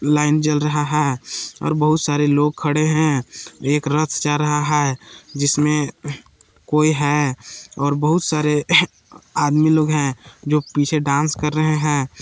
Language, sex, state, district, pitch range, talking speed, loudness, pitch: Hindi, male, Jharkhand, Palamu, 145-150 Hz, 145 wpm, -18 LUFS, 150 Hz